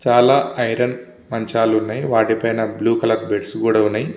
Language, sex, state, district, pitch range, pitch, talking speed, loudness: Telugu, male, Andhra Pradesh, Visakhapatnam, 110-120 Hz, 115 Hz, 160 wpm, -18 LUFS